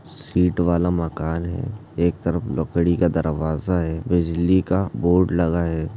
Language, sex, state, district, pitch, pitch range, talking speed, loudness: Hindi, male, Chhattisgarh, Bastar, 85 Hz, 80-90 Hz, 150 wpm, -21 LUFS